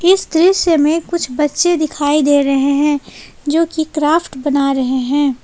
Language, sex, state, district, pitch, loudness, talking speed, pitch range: Hindi, female, Jharkhand, Palamu, 295 Hz, -14 LUFS, 165 wpm, 280-330 Hz